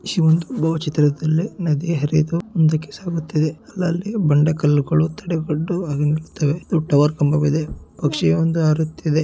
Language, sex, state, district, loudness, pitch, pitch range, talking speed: Kannada, male, Karnataka, Shimoga, -19 LUFS, 155 Hz, 150-165 Hz, 130 wpm